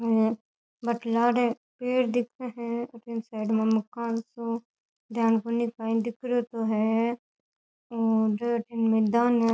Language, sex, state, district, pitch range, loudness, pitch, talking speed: Rajasthani, female, Rajasthan, Churu, 225-235 Hz, -27 LUFS, 230 Hz, 140 wpm